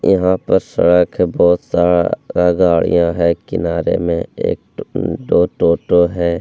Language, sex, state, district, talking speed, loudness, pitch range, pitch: Hindi, male, Bihar, Gaya, 140 wpm, -15 LUFS, 85-90 Hz, 85 Hz